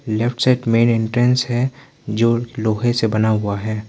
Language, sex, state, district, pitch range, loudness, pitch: Hindi, male, Arunachal Pradesh, Lower Dibang Valley, 110-120 Hz, -18 LUFS, 115 Hz